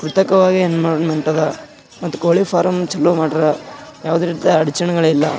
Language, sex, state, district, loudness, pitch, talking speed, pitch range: Kannada, male, Karnataka, Gulbarga, -16 LUFS, 165 Hz, 125 wpm, 155-175 Hz